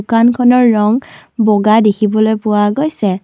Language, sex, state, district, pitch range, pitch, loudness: Assamese, female, Assam, Kamrup Metropolitan, 210-240 Hz, 220 Hz, -12 LUFS